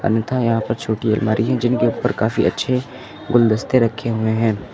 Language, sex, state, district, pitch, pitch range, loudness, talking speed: Hindi, male, Uttar Pradesh, Lucknow, 115 Hz, 110-125 Hz, -19 LUFS, 180 wpm